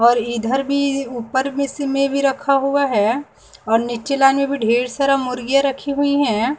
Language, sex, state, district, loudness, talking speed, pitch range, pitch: Hindi, female, Bihar, West Champaran, -18 LUFS, 180 wpm, 240-275 Hz, 275 Hz